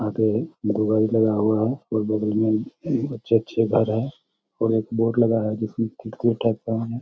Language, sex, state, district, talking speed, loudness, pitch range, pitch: Hindi, male, Bihar, Samastipur, 135 wpm, -23 LUFS, 110-115 Hz, 110 Hz